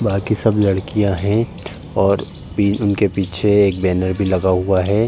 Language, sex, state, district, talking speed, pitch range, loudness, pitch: Hindi, male, Uttar Pradesh, Jalaun, 165 wpm, 95-105 Hz, -17 LUFS, 100 Hz